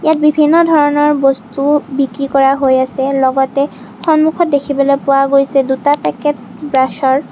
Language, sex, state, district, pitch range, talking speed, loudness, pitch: Assamese, female, Assam, Kamrup Metropolitan, 270-295 Hz, 125 wpm, -13 LUFS, 275 Hz